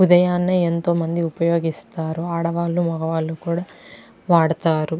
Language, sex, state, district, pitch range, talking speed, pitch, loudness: Telugu, female, Andhra Pradesh, Krishna, 160-170 Hz, 85 wpm, 170 Hz, -20 LUFS